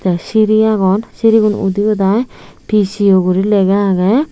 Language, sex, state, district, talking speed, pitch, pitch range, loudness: Chakma, female, Tripura, Unakoti, 140 wpm, 205 Hz, 195-215 Hz, -13 LUFS